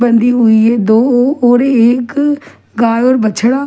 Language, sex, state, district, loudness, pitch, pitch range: Hindi, female, Delhi, New Delhi, -10 LUFS, 245 Hz, 230-255 Hz